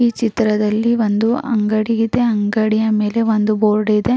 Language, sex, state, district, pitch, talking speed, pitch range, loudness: Kannada, female, Karnataka, Raichur, 220 Hz, 145 wpm, 215-230 Hz, -16 LUFS